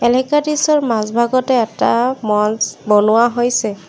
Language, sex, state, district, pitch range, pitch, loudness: Assamese, female, Assam, Kamrup Metropolitan, 215-255 Hz, 240 Hz, -15 LUFS